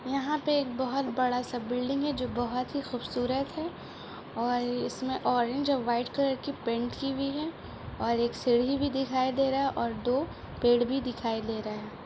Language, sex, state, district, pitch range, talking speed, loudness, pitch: Hindi, female, Bihar, East Champaran, 245-275 Hz, 190 wpm, -30 LUFS, 255 Hz